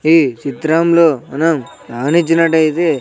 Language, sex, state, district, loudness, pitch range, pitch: Telugu, male, Andhra Pradesh, Sri Satya Sai, -14 LUFS, 140-165 Hz, 160 Hz